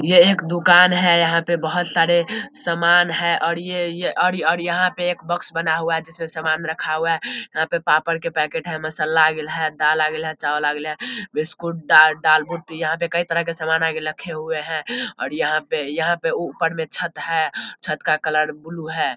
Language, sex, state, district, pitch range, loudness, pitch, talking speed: Hindi, male, Bihar, Darbhanga, 155-175 Hz, -19 LUFS, 165 Hz, 205 wpm